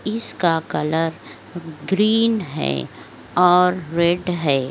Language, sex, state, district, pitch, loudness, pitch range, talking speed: Hindi, female, Uttar Pradesh, Etah, 170 Hz, -19 LUFS, 155-185 Hz, 100 wpm